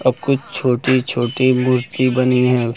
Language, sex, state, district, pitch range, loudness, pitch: Hindi, male, Uttar Pradesh, Lucknow, 125-130 Hz, -17 LUFS, 125 Hz